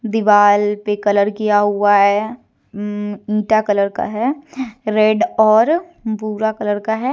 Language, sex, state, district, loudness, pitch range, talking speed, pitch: Hindi, female, Jharkhand, Deoghar, -16 LUFS, 205-220 Hz, 145 wpm, 215 Hz